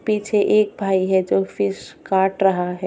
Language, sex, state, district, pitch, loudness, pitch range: Hindi, female, Goa, North and South Goa, 190 Hz, -19 LUFS, 180-205 Hz